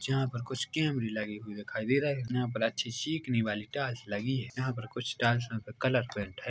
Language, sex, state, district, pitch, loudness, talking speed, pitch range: Hindi, male, Chhattisgarh, Korba, 120 Hz, -33 LUFS, 250 wpm, 110-130 Hz